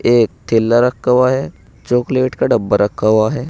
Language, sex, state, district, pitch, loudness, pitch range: Hindi, male, Uttar Pradesh, Saharanpur, 120 Hz, -15 LUFS, 110-130 Hz